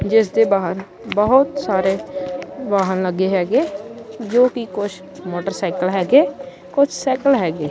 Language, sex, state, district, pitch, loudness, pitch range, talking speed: Punjabi, male, Punjab, Kapurthala, 200 Hz, -18 LUFS, 185-260 Hz, 125 wpm